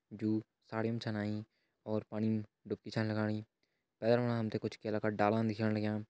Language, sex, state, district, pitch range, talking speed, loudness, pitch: Hindi, male, Uttarakhand, Tehri Garhwal, 105-110 Hz, 175 wpm, -36 LUFS, 110 Hz